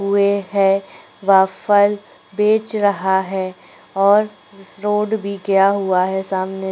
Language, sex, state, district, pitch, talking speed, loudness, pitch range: Hindi, female, Chhattisgarh, Korba, 200 Hz, 125 wpm, -17 LUFS, 190-205 Hz